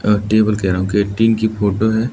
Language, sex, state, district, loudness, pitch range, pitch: Hindi, male, Arunachal Pradesh, Lower Dibang Valley, -16 LUFS, 100-110 Hz, 105 Hz